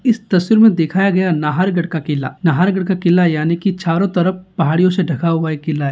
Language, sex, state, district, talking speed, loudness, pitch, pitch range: Hindi, male, Rajasthan, Nagaur, 245 wpm, -15 LUFS, 175 Hz, 160-190 Hz